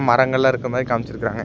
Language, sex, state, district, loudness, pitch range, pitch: Tamil, male, Tamil Nadu, Nilgiris, -19 LUFS, 115-130 Hz, 125 Hz